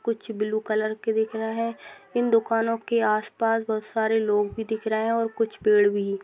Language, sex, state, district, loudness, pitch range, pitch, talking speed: Hindi, female, Bihar, Begusarai, -25 LUFS, 215-225 Hz, 220 Hz, 210 wpm